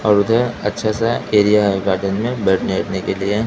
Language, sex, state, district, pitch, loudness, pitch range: Hindi, male, Maharashtra, Mumbai Suburban, 105 Hz, -17 LUFS, 100-115 Hz